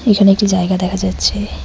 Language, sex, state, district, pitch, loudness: Bengali, female, West Bengal, Cooch Behar, 185 Hz, -14 LUFS